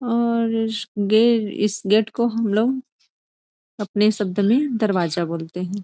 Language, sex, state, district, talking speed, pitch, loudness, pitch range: Hindi, female, Chhattisgarh, Rajnandgaon, 145 wpm, 215 Hz, -21 LUFS, 200-230 Hz